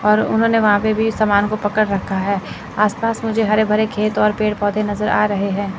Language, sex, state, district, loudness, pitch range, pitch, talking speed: Hindi, male, Chandigarh, Chandigarh, -17 LUFS, 205-215 Hz, 210 Hz, 240 wpm